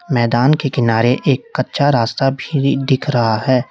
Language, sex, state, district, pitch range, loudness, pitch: Hindi, male, Uttar Pradesh, Lalitpur, 120-140 Hz, -16 LUFS, 135 Hz